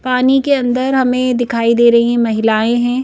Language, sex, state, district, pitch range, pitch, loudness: Hindi, female, Madhya Pradesh, Bhopal, 235-255 Hz, 245 Hz, -13 LUFS